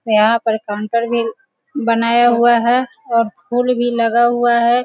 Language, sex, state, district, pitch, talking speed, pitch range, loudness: Hindi, female, Bihar, Sitamarhi, 235 Hz, 160 wpm, 230-240 Hz, -15 LUFS